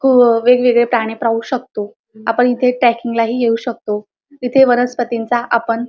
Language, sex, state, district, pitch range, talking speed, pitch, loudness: Marathi, female, Maharashtra, Dhule, 230-245 Hz, 155 wpm, 235 Hz, -15 LUFS